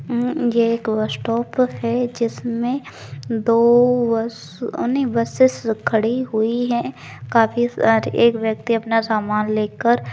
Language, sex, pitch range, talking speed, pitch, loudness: Maithili, female, 220-240 Hz, 135 wpm, 230 Hz, -19 LUFS